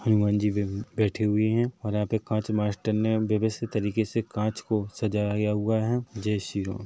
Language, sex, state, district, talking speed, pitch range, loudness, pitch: Hindi, male, Chhattisgarh, Rajnandgaon, 195 wpm, 105-110 Hz, -27 LUFS, 110 Hz